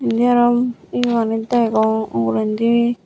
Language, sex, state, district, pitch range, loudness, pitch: Chakma, female, Tripura, Unakoti, 220-240 Hz, -17 LUFS, 230 Hz